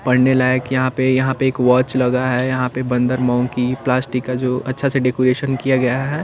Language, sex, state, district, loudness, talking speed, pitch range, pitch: Hindi, male, Chandigarh, Chandigarh, -17 LUFS, 220 wpm, 125-130 Hz, 130 Hz